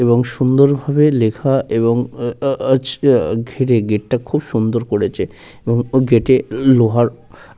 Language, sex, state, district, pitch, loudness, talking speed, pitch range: Bengali, male, West Bengal, Purulia, 125 Hz, -16 LUFS, 140 wpm, 115-135 Hz